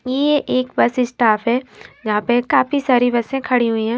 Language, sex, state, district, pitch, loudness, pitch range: Hindi, female, Himachal Pradesh, Shimla, 245 Hz, -17 LUFS, 235-260 Hz